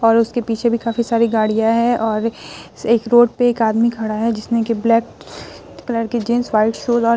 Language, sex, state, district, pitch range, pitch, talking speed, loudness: Hindi, female, Bihar, Vaishali, 225-235 Hz, 230 Hz, 220 wpm, -17 LUFS